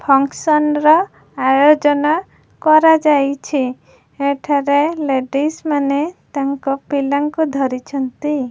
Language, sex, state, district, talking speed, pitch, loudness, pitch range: Odia, female, Odisha, Khordha, 80 wpm, 285 Hz, -16 LUFS, 275-305 Hz